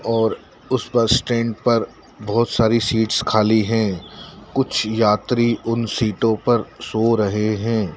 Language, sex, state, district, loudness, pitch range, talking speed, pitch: Hindi, male, Madhya Pradesh, Dhar, -19 LUFS, 110-115 Hz, 135 wpm, 115 Hz